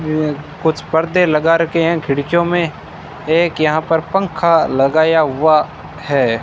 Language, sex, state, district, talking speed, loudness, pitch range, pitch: Hindi, male, Rajasthan, Bikaner, 140 wpm, -15 LUFS, 155-165 Hz, 160 Hz